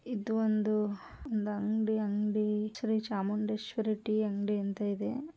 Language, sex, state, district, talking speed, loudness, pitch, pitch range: Kannada, female, Karnataka, Mysore, 135 wpm, -33 LUFS, 215 Hz, 210-220 Hz